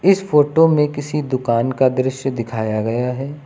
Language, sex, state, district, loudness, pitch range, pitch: Hindi, male, Uttar Pradesh, Lucknow, -18 LUFS, 120-150 Hz, 135 Hz